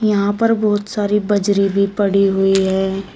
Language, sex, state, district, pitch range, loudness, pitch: Hindi, female, Uttar Pradesh, Shamli, 195-205 Hz, -16 LUFS, 200 Hz